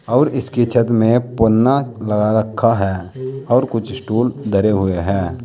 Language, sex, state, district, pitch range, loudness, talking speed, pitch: Hindi, male, Uttar Pradesh, Saharanpur, 105-125 Hz, -17 LUFS, 155 wpm, 115 Hz